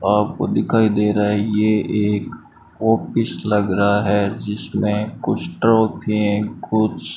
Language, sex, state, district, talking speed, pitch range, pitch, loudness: Hindi, male, Rajasthan, Bikaner, 135 wpm, 105-110 Hz, 105 Hz, -19 LUFS